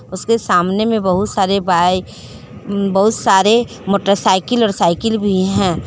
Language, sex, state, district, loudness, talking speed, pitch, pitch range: Hindi, female, Jharkhand, Deoghar, -15 LUFS, 155 wpm, 195 Hz, 185-215 Hz